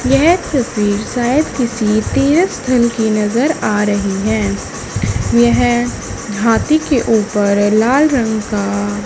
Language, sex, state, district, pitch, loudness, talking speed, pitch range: Hindi, female, Haryana, Charkhi Dadri, 215 Hz, -14 LUFS, 120 wpm, 200-255 Hz